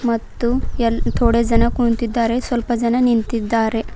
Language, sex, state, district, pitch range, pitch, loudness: Kannada, female, Karnataka, Bidar, 230-240 Hz, 235 Hz, -18 LUFS